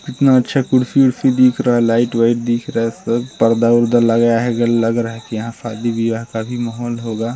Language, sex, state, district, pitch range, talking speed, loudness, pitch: Hindi, male, Chhattisgarh, Sarguja, 115-125 Hz, 210 wpm, -16 LUFS, 120 Hz